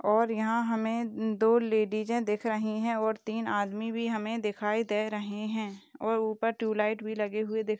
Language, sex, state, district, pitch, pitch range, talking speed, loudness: Hindi, female, Maharashtra, Aurangabad, 220 Hz, 215-225 Hz, 200 wpm, -30 LUFS